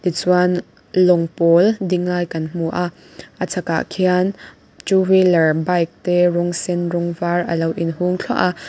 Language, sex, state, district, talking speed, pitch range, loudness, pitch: Mizo, female, Mizoram, Aizawl, 170 wpm, 170-180 Hz, -18 LUFS, 175 Hz